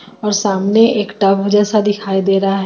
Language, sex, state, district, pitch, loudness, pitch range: Hindi, female, Jharkhand, Ranchi, 205 Hz, -14 LUFS, 195-210 Hz